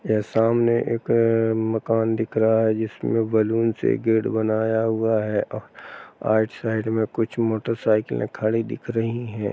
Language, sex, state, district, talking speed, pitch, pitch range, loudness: Hindi, male, Uttar Pradesh, Jalaun, 145 wpm, 110 Hz, 110-115 Hz, -22 LUFS